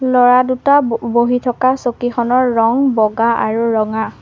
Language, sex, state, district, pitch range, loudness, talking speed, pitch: Assamese, female, Assam, Sonitpur, 230-255 Hz, -14 LUFS, 140 wpm, 245 Hz